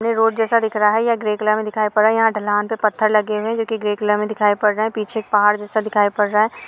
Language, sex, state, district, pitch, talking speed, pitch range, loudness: Hindi, female, Jharkhand, Sahebganj, 215 Hz, 315 wpm, 210-220 Hz, -18 LUFS